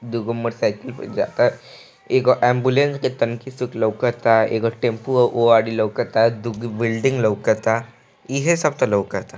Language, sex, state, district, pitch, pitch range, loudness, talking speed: Bhojpuri, male, Bihar, East Champaran, 115 Hz, 115-130 Hz, -20 LUFS, 140 wpm